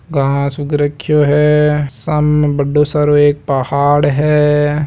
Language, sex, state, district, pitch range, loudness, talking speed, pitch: Marwari, male, Rajasthan, Nagaur, 145-150 Hz, -13 LUFS, 125 wpm, 145 Hz